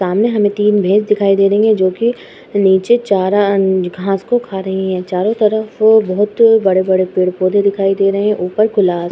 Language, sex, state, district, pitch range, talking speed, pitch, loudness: Hindi, female, Uttar Pradesh, Hamirpur, 190-215 Hz, 205 wpm, 200 Hz, -13 LUFS